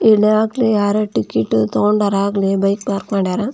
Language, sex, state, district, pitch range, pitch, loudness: Kannada, female, Karnataka, Belgaum, 195-215 Hz, 200 Hz, -16 LUFS